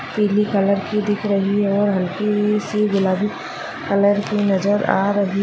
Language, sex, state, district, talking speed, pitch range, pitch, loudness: Hindi, female, Maharashtra, Nagpur, 190 wpm, 195-210 Hz, 205 Hz, -19 LUFS